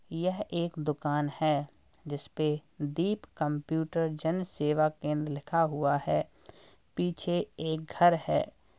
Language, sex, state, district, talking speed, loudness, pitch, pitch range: Hindi, male, Uttar Pradesh, Jalaun, 115 wpm, -31 LUFS, 160 Hz, 150-170 Hz